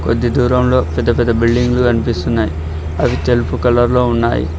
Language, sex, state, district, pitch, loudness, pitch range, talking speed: Telugu, male, Telangana, Hyderabad, 120 Hz, -15 LUFS, 100-120 Hz, 155 wpm